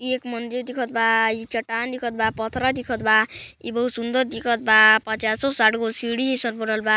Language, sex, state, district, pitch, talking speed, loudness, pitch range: Chhattisgarhi, female, Chhattisgarh, Balrampur, 230 Hz, 180 wpm, -21 LUFS, 220-250 Hz